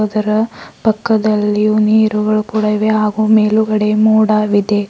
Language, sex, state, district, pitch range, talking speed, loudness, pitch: Kannada, female, Karnataka, Bidar, 210-215 Hz, 100 wpm, -13 LUFS, 215 Hz